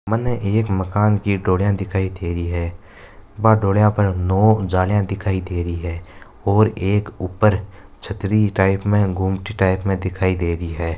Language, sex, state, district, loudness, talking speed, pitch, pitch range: Marwari, male, Rajasthan, Nagaur, -19 LUFS, 165 wpm, 95 Hz, 95-105 Hz